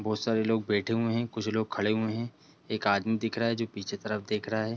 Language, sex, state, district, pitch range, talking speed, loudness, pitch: Hindi, male, Bihar, East Champaran, 105-115 Hz, 275 wpm, -30 LUFS, 110 Hz